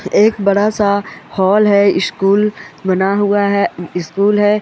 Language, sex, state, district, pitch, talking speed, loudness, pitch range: Hindi, female, Goa, North and South Goa, 200 Hz, 130 wpm, -14 LUFS, 195-205 Hz